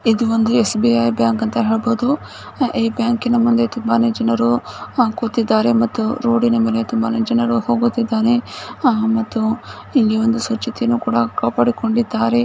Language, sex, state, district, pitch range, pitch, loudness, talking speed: Kannada, female, Karnataka, Bijapur, 220-235 Hz, 230 Hz, -17 LUFS, 125 wpm